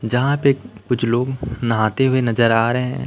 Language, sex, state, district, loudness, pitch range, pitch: Hindi, male, Chhattisgarh, Raipur, -18 LUFS, 115-130 Hz, 120 Hz